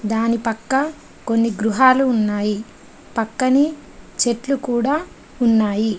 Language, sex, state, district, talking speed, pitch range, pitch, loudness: Telugu, female, Telangana, Adilabad, 90 wpm, 220-265 Hz, 230 Hz, -19 LUFS